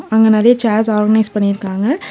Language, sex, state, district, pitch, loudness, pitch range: Tamil, female, Tamil Nadu, Nilgiris, 220 Hz, -13 LUFS, 210-225 Hz